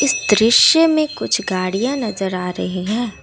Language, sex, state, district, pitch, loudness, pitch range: Hindi, female, Assam, Kamrup Metropolitan, 220 Hz, -16 LUFS, 190-275 Hz